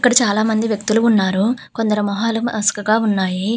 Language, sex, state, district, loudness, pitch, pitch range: Telugu, female, Telangana, Hyderabad, -17 LUFS, 220 Hz, 205-230 Hz